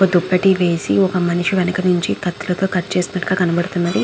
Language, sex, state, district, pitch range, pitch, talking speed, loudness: Telugu, female, Andhra Pradesh, Guntur, 175-190 Hz, 180 Hz, 180 wpm, -17 LUFS